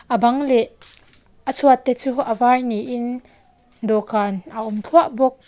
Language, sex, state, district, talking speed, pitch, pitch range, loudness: Mizo, female, Mizoram, Aizawl, 165 wpm, 245 Hz, 220-260 Hz, -19 LUFS